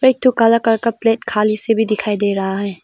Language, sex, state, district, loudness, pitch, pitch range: Hindi, female, Arunachal Pradesh, Papum Pare, -16 LUFS, 225 Hz, 210-230 Hz